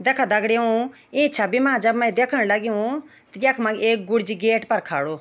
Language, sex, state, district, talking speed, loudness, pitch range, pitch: Garhwali, female, Uttarakhand, Tehri Garhwal, 195 wpm, -21 LUFS, 215-255 Hz, 230 Hz